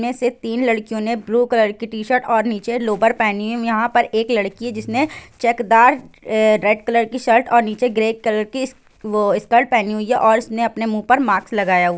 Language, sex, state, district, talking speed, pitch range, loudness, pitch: Hindi, female, Bihar, Gopalganj, 195 wpm, 220-240 Hz, -18 LUFS, 230 Hz